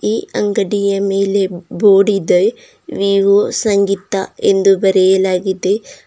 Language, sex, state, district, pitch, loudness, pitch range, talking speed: Kannada, female, Karnataka, Bidar, 200 Hz, -14 LUFS, 195-205 Hz, 90 wpm